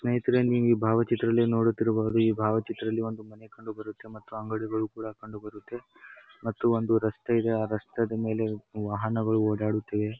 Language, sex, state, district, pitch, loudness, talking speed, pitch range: Kannada, male, Karnataka, Bijapur, 110 Hz, -27 LUFS, 140 wpm, 110-115 Hz